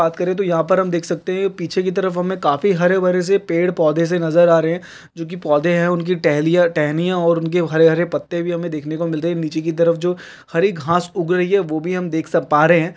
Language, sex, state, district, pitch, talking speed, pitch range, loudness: Hindi, male, Chhattisgarh, Kabirdham, 170 Hz, 260 wpm, 165-180 Hz, -18 LUFS